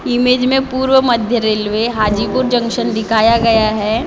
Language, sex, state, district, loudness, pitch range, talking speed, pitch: Hindi, female, Maharashtra, Gondia, -14 LUFS, 220-250 Hz, 175 wpm, 230 Hz